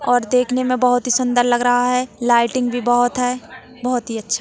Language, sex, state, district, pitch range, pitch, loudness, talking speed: Hindi, female, Chhattisgarh, Jashpur, 245-250 Hz, 245 Hz, -18 LUFS, 215 wpm